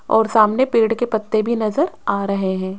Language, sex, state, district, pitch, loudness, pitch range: Hindi, female, Rajasthan, Jaipur, 220 Hz, -18 LUFS, 200-235 Hz